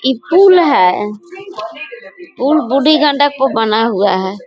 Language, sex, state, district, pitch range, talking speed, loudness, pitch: Hindi, female, Bihar, East Champaran, 225-345 Hz, 135 wpm, -12 LUFS, 285 Hz